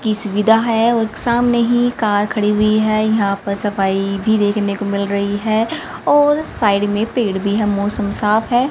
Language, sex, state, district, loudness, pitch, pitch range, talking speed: Hindi, female, Haryana, Rohtak, -16 LUFS, 215 Hz, 205-230 Hz, 200 wpm